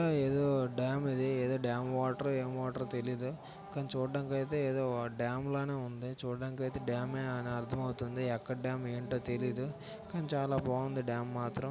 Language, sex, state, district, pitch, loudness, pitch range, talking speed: Telugu, male, Karnataka, Gulbarga, 130 Hz, -36 LUFS, 125-135 Hz, 155 wpm